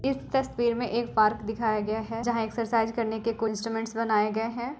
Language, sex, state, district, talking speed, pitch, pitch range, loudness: Hindi, female, Uttar Pradesh, Budaun, 215 wpm, 225 Hz, 220-235 Hz, -28 LUFS